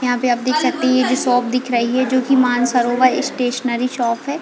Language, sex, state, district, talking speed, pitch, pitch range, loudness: Hindi, female, Chhattisgarh, Raigarh, 245 wpm, 250 Hz, 245-255 Hz, -17 LUFS